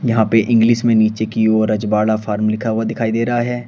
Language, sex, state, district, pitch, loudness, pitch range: Hindi, male, Uttar Pradesh, Shamli, 110 Hz, -16 LUFS, 110-115 Hz